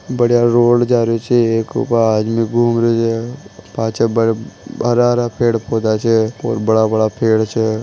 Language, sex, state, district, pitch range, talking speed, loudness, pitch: Marwari, male, Rajasthan, Nagaur, 110-120 Hz, 160 wpm, -15 LUFS, 115 Hz